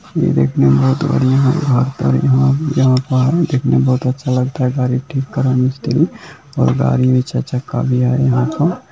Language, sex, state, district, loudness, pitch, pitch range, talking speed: Maithili, male, Bihar, Muzaffarpur, -15 LUFS, 130 Hz, 125-135 Hz, 215 wpm